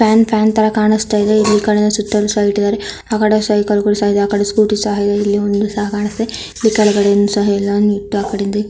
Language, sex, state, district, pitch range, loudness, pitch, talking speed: Kannada, female, Karnataka, Dharwad, 205-215 Hz, -14 LUFS, 210 Hz, 85 wpm